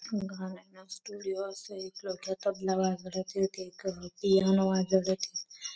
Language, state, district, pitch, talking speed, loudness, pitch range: Bhili, Maharashtra, Dhule, 190 Hz, 115 wpm, -32 LUFS, 185-195 Hz